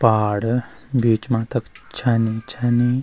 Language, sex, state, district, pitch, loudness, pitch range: Garhwali, male, Uttarakhand, Uttarkashi, 120 Hz, -21 LUFS, 110-125 Hz